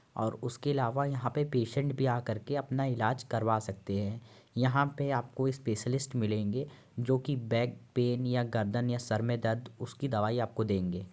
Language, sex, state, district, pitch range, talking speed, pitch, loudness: Hindi, male, Uttar Pradesh, Jyotiba Phule Nagar, 110-130 Hz, 175 wpm, 120 Hz, -32 LUFS